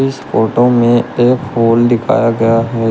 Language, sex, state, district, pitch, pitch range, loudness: Hindi, male, Uttar Pradesh, Shamli, 120 Hz, 115-125 Hz, -12 LUFS